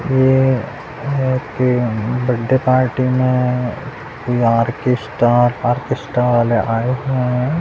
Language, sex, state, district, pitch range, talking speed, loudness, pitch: Hindi, male, Bihar, Purnia, 120-130 Hz, 95 wpm, -17 LUFS, 125 Hz